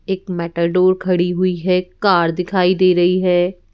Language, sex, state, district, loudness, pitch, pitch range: Hindi, female, Madhya Pradesh, Bhopal, -16 LUFS, 180 Hz, 175-185 Hz